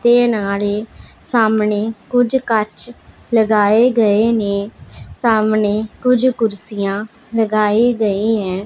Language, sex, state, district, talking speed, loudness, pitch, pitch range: Punjabi, female, Punjab, Pathankot, 105 wpm, -16 LUFS, 220 Hz, 210-235 Hz